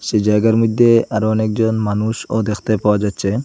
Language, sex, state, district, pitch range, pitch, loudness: Bengali, male, Assam, Hailakandi, 105-115 Hz, 110 Hz, -16 LUFS